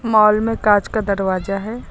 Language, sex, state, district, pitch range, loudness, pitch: Hindi, female, Uttar Pradesh, Lucknow, 200-220 Hz, -17 LUFS, 210 Hz